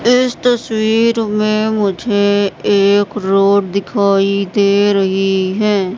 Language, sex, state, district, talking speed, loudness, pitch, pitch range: Hindi, female, Madhya Pradesh, Katni, 100 wpm, -14 LUFS, 205 Hz, 200-215 Hz